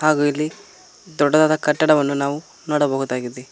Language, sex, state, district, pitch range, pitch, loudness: Kannada, male, Karnataka, Koppal, 140-155 Hz, 150 Hz, -19 LUFS